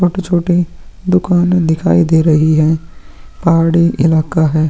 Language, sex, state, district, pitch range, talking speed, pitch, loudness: Hindi, male, Uttarakhand, Tehri Garhwal, 155-175 Hz, 140 wpm, 165 Hz, -12 LUFS